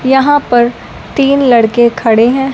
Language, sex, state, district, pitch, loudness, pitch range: Hindi, male, Punjab, Fazilka, 245 Hz, -10 LUFS, 235-270 Hz